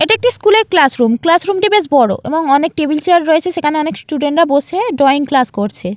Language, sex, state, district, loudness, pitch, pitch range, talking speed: Bengali, female, West Bengal, Jalpaiguri, -13 LUFS, 310 Hz, 280-355 Hz, 230 wpm